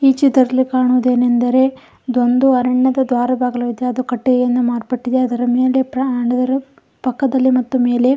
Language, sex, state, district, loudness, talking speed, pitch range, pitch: Kannada, female, Karnataka, Belgaum, -16 LUFS, 125 wpm, 245-260 Hz, 255 Hz